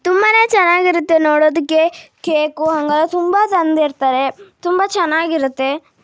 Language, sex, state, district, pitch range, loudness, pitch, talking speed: Kannada, female, Karnataka, Shimoga, 305-360 Hz, -15 LUFS, 325 Hz, 90 wpm